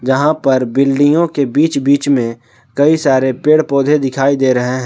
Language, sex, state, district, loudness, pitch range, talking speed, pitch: Hindi, male, Jharkhand, Palamu, -13 LUFS, 130-145 Hz, 185 wpm, 140 Hz